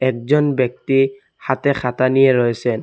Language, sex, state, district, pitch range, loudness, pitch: Bengali, male, Assam, Hailakandi, 125-135 Hz, -17 LUFS, 130 Hz